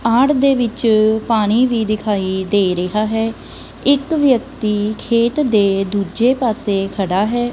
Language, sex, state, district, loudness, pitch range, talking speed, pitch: Punjabi, female, Punjab, Kapurthala, -16 LUFS, 205-245 Hz, 135 wpm, 220 Hz